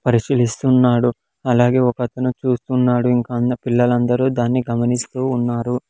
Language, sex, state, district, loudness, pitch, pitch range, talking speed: Telugu, male, Andhra Pradesh, Sri Satya Sai, -18 LUFS, 125 Hz, 120-125 Hz, 100 wpm